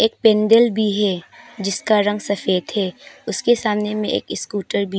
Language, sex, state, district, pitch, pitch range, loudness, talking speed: Hindi, female, Arunachal Pradesh, Papum Pare, 210 Hz, 200-220 Hz, -19 LUFS, 145 wpm